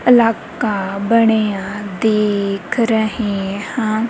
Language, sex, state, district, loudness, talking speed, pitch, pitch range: Punjabi, female, Punjab, Kapurthala, -17 LUFS, 75 wpm, 215 Hz, 200-225 Hz